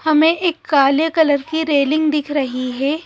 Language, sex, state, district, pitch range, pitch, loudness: Hindi, female, Madhya Pradesh, Bhopal, 280-320 Hz, 300 Hz, -17 LUFS